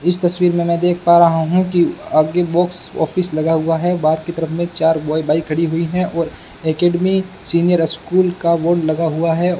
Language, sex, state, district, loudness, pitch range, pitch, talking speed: Hindi, male, Rajasthan, Bikaner, -16 LUFS, 160-175 Hz, 170 Hz, 220 wpm